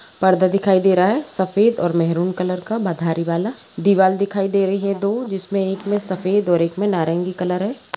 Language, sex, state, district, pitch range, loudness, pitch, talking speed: Hindi, female, Chhattisgarh, Kabirdham, 180-200 Hz, -19 LUFS, 190 Hz, 210 wpm